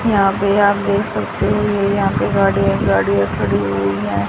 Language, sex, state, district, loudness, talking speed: Hindi, female, Haryana, Charkhi Dadri, -16 LUFS, 210 wpm